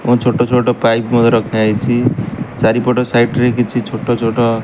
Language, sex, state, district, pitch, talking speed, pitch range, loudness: Odia, male, Odisha, Malkangiri, 120 Hz, 180 wpm, 115-125 Hz, -14 LUFS